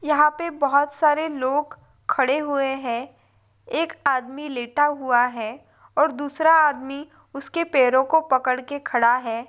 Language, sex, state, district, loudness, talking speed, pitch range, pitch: Hindi, female, Maharashtra, Pune, -21 LUFS, 135 wpm, 255-300 Hz, 280 Hz